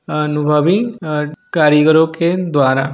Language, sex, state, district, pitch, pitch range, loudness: Hindi, male, Bihar, Sitamarhi, 150 Hz, 150-170 Hz, -14 LUFS